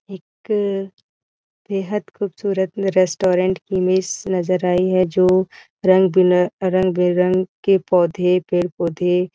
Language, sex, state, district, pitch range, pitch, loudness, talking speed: Hindi, female, Bihar, Jahanabad, 180-190 Hz, 185 Hz, -18 LUFS, 130 wpm